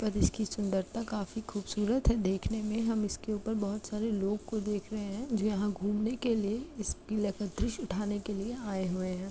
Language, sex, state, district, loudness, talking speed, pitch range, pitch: Hindi, female, Uttar Pradesh, Jalaun, -33 LUFS, 215 wpm, 205-220 Hz, 210 Hz